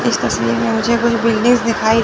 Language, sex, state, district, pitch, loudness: Hindi, male, Chandigarh, Chandigarh, 225 Hz, -15 LUFS